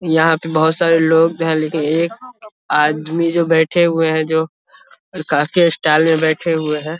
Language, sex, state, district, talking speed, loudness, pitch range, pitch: Hindi, male, Bihar, Vaishali, 190 wpm, -15 LUFS, 155-170 Hz, 160 Hz